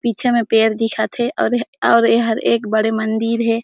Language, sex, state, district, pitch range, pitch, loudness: Chhattisgarhi, female, Chhattisgarh, Jashpur, 220-235 Hz, 230 Hz, -17 LUFS